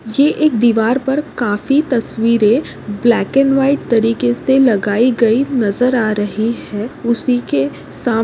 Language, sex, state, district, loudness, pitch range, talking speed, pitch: Hindi, female, Maharashtra, Pune, -15 LUFS, 220-265 Hz, 140 wpm, 235 Hz